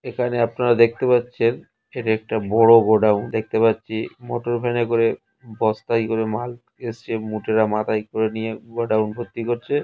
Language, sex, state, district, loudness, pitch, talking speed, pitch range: Bengali, male, West Bengal, North 24 Parganas, -20 LUFS, 115 Hz, 150 wpm, 110-120 Hz